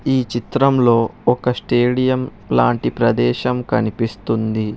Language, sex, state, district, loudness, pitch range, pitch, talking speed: Telugu, male, Telangana, Hyderabad, -18 LUFS, 105-125 Hz, 115 Hz, 100 wpm